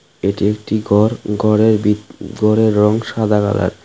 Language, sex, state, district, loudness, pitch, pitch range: Bengali, male, Tripura, West Tripura, -15 LUFS, 105 Hz, 105-110 Hz